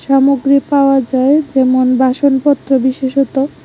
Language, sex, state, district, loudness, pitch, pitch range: Bengali, female, Tripura, West Tripura, -12 LUFS, 270 Hz, 260-280 Hz